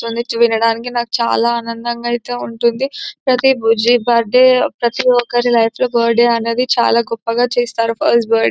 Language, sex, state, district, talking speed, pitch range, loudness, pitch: Telugu, female, Telangana, Nalgonda, 150 wpm, 230-245 Hz, -15 LUFS, 235 Hz